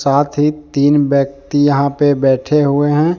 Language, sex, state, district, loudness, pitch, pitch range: Hindi, male, Jharkhand, Deoghar, -14 LUFS, 145 Hz, 140-150 Hz